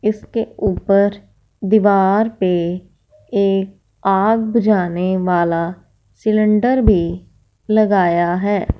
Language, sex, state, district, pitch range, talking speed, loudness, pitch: Hindi, female, Punjab, Fazilka, 180-215 Hz, 80 wpm, -16 LUFS, 200 Hz